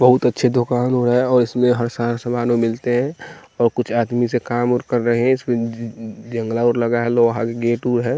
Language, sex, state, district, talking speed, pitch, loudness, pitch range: Hindi, male, Bihar, West Champaran, 240 wpm, 120 Hz, -18 LUFS, 115-125 Hz